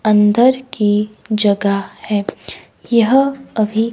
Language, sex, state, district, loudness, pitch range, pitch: Hindi, female, Himachal Pradesh, Shimla, -15 LUFS, 210-235 Hz, 215 Hz